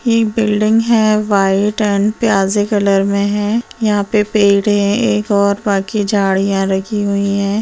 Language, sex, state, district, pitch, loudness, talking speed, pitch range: Hindi, female, Bihar, Samastipur, 205 Hz, -14 LUFS, 155 wpm, 200-215 Hz